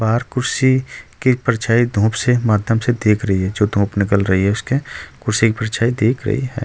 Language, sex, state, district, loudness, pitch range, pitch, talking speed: Hindi, male, Uttar Pradesh, Saharanpur, -17 LUFS, 105-125 Hz, 115 Hz, 205 wpm